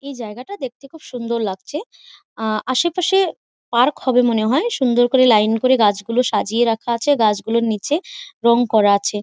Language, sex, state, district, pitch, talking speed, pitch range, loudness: Bengali, female, West Bengal, Malda, 245 Hz, 160 wpm, 225-280 Hz, -18 LUFS